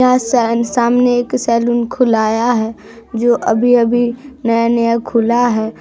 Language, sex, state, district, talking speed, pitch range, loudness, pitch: Hindi, female, Bihar, Araria, 115 wpm, 230-245 Hz, -14 LUFS, 235 Hz